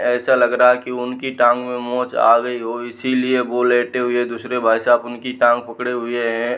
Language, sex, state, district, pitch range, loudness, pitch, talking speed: Hindi, male, Uttar Pradesh, Muzaffarnagar, 120-125 Hz, -18 LUFS, 125 Hz, 220 wpm